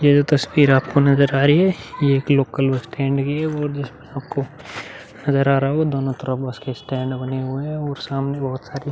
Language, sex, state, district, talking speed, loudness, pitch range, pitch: Hindi, male, Uttar Pradesh, Muzaffarnagar, 235 wpm, -20 LUFS, 135-145 Hz, 140 Hz